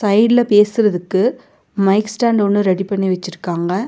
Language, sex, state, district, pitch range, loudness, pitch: Tamil, female, Tamil Nadu, Nilgiris, 185-215 Hz, -16 LUFS, 200 Hz